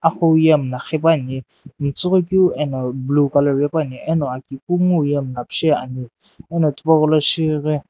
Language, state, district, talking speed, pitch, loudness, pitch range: Sumi, Nagaland, Dimapur, 175 wpm, 150 Hz, -18 LUFS, 135-160 Hz